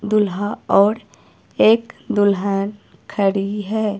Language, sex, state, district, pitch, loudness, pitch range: Hindi, female, Himachal Pradesh, Shimla, 205 Hz, -18 LUFS, 200-215 Hz